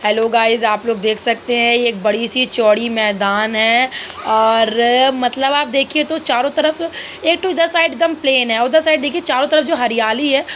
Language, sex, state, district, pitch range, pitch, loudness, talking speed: Hindi, female, Uttar Pradesh, Budaun, 225-305 Hz, 245 Hz, -15 LUFS, 195 wpm